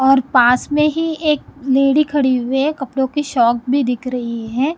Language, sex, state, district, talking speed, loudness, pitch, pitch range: Hindi, female, Punjab, Kapurthala, 200 wpm, -16 LUFS, 270 Hz, 250-295 Hz